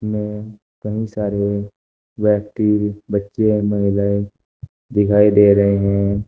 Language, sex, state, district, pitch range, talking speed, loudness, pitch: Hindi, male, Uttar Pradesh, Shamli, 100-105 Hz, 95 wpm, -17 LUFS, 105 Hz